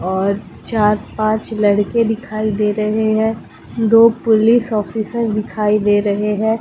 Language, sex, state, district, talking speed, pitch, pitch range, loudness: Hindi, female, Bihar, West Champaran, 135 wpm, 215 Hz, 210-220 Hz, -16 LUFS